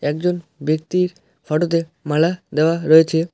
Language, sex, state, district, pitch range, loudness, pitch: Bengali, male, West Bengal, Alipurduar, 155-175 Hz, -18 LUFS, 160 Hz